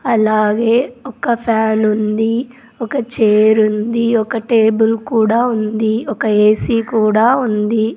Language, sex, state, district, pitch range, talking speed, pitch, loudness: Telugu, female, Andhra Pradesh, Sri Satya Sai, 215-235 Hz, 100 wpm, 225 Hz, -14 LUFS